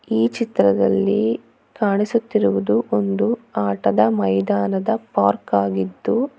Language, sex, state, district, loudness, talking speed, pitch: Kannada, female, Karnataka, Bangalore, -19 LUFS, 75 wpm, 105 Hz